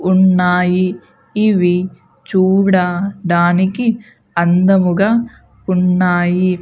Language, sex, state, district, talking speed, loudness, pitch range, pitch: Telugu, female, Andhra Pradesh, Sri Satya Sai, 45 wpm, -14 LUFS, 180-195 Hz, 185 Hz